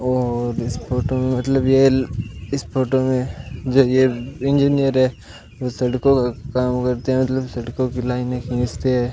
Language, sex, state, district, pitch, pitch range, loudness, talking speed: Hindi, male, Rajasthan, Bikaner, 125 Hz, 125-130 Hz, -20 LUFS, 150 wpm